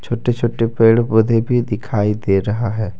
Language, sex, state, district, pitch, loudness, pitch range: Hindi, male, Jharkhand, Deoghar, 115 Hz, -17 LUFS, 105-120 Hz